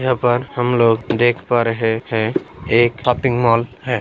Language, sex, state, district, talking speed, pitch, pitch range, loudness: Hindi, male, Bihar, Saharsa, 165 wpm, 120 Hz, 115-125 Hz, -17 LUFS